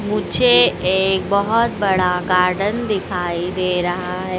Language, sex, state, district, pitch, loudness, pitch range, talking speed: Hindi, female, Madhya Pradesh, Dhar, 185 Hz, -17 LUFS, 180-200 Hz, 125 wpm